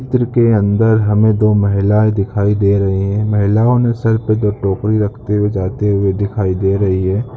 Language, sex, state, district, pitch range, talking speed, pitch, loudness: Hindi, male, Chhattisgarh, Sukma, 100-110 Hz, 195 wpm, 105 Hz, -14 LUFS